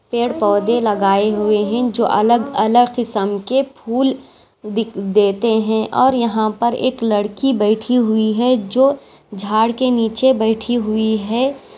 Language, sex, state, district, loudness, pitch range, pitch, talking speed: Hindi, female, Maharashtra, Aurangabad, -16 LUFS, 215-245 Hz, 225 Hz, 145 wpm